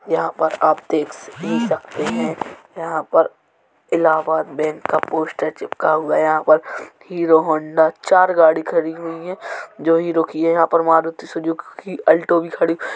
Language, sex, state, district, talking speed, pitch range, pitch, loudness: Hindi, male, Uttar Pradesh, Jalaun, 175 wpm, 160-165 Hz, 165 Hz, -18 LUFS